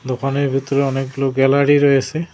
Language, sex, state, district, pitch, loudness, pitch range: Bengali, male, West Bengal, Cooch Behar, 135 Hz, -17 LUFS, 135-140 Hz